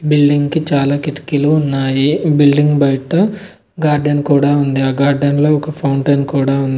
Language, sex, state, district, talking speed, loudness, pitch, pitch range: Telugu, male, Telangana, Mahabubabad, 150 wpm, -14 LUFS, 145 Hz, 140-150 Hz